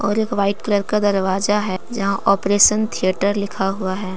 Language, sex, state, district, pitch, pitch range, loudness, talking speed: Hindi, female, Jharkhand, Deoghar, 200 Hz, 195-210 Hz, -18 LUFS, 185 wpm